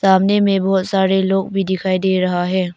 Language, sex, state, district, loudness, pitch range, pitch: Hindi, female, Arunachal Pradesh, Papum Pare, -16 LUFS, 185-195 Hz, 190 Hz